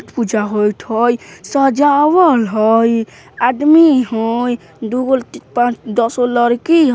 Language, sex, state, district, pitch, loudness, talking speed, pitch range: Bajjika, female, Bihar, Vaishali, 240 Hz, -14 LUFS, 105 wpm, 225-265 Hz